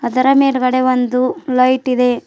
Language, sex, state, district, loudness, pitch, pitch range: Kannada, female, Karnataka, Bidar, -14 LUFS, 255 Hz, 250-260 Hz